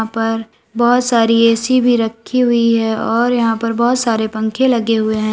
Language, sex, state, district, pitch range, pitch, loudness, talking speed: Hindi, female, Uttar Pradesh, Lalitpur, 225-240 Hz, 230 Hz, -15 LUFS, 190 wpm